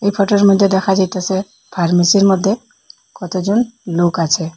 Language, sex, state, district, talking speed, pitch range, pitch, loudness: Bengali, female, Assam, Hailakandi, 130 wpm, 180-200 Hz, 190 Hz, -15 LUFS